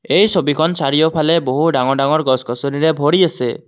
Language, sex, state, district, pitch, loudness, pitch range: Assamese, male, Assam, Kamrup Metropolitan, 150 Hz, -15 LUFS, 135-160 Hz